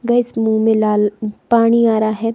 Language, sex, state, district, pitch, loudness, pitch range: Hindi, female, Himachal Pradesh, Shimla, 225 Hz, -15 LUFS, 215-235 Hz